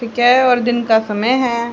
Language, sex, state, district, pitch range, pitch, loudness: Hindi, female, Haryana, Charkhi Dadri, 235-245 Hz, 240 Hz, -14 LUFS